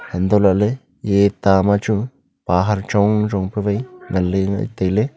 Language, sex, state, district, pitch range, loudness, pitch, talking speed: Wancho, male, Arunachal Pradesh, Longding, 95-105 Hz, -18 LUFS, 100 Hz, 175 wpm